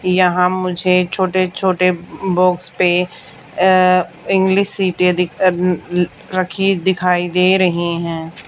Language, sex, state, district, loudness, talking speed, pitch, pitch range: Hindi, female, Haryana, Charkhi Dadri, -16 LUFS, 105 wpm, 180 Hz, 180-185 Hz